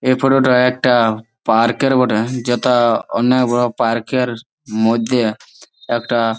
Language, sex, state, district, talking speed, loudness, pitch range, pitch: Bengali, male, West Bengal, Jalpaiguri, 130 wpm, -16 LUFS, 115-125 Hz, 120 Hz